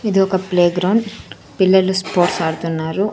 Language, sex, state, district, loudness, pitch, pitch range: Telugu, female, Andhra Pradesh, Sri Satya Sai, -17 LUFS, 185 Hz, 175-195 Hz